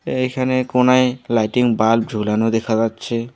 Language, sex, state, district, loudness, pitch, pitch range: Bengali, male, West Bengal, Alipurduar, -18 LUFS, 115 Hz, 110-125 Hz